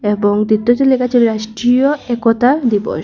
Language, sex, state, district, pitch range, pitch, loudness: Bengali, female, Assam, Hailakandi, 215-250 Hz, 240 Hz, -14 LUFS